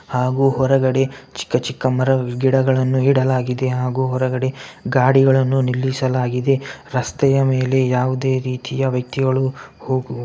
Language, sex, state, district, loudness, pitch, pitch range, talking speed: Kannada, male, Karnataka, Bellary, -18 LUFS, 130 Hz, 130-135 Hz, 105 wpm